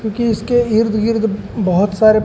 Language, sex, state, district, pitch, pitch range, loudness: Hindi, male, Madhya Pradesh, Umaria, 220 Hz, 215-225 Hz, -16 LUFS